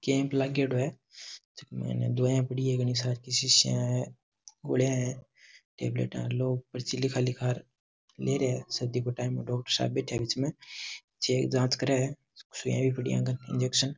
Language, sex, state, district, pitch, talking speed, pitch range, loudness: Marwari, male, Rajasthan, Nagaur, 125 Hz, 185 wpm, 125-130 Hz, -29 LUFS